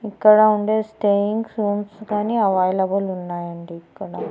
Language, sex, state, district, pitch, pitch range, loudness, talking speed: Telugu, female, Andhra Pradesh, Annamaya, 205 Hz, 190-215 Hz, -19 LUFS, 110 wpm